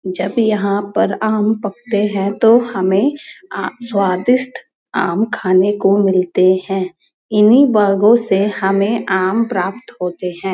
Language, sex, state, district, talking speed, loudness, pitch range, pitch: Hindi, female, Uttar Pradesh, Muzaffarnagar, 130 wpm, -15 LUFS, 190-220 Hz, 200 Hz